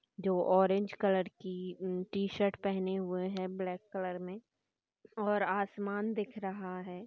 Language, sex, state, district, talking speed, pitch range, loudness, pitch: Marathi, female, Maharashtra, Sindhudurg, 145 wpm, 185-200 Hz, -35 LUFS, 190 Hz